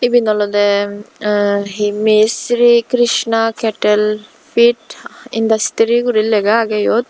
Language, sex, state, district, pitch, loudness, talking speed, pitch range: Chakma, female, Tripura, Dhalai, 220 Hz, -14 LUFS, 110 wpm, 210-235 Hz